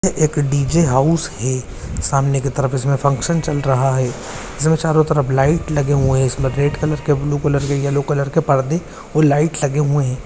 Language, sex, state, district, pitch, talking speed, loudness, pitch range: Hindi, male, Jharkhand, Jamtara, 145 Hz, 210 wpm, -17 LUFS, 135-155 Hz